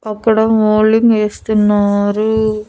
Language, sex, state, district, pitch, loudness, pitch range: Telugu, female, Andhra Pradesh, Annamaya, 215 Hz, -13 LUFS, 210-220 Hz